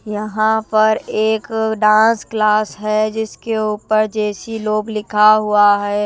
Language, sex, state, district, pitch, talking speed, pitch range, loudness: Hindi, female, Chhattisgarh, Raipur, 215 Hz, 130 wpm, 210-220 Hz, -16 LUFS